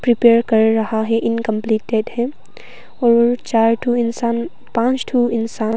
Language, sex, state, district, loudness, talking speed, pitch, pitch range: Hindi, female, Arunachal Pradesh, Papum Pare, -17 LUFS, 125 wpm, 230 Hz, 225-240 Hz